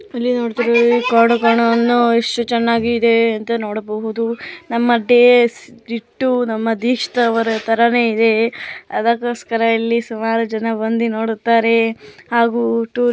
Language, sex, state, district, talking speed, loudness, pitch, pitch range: Kannada, female, Karnataka, Mysore, 115 wpm, -16 LUFS, 230 Hz, 225-235 Hz